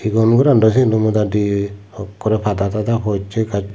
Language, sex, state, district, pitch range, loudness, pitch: Chakma, male, Tripura, Unakoti, 100-110 Hz, -16 LUFS, 105 Hz